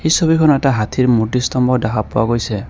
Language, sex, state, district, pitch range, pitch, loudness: Assamese, male, Assam, Kamrup Metropolitan, 110-135 Hz, 125 Hz, -15 LUFS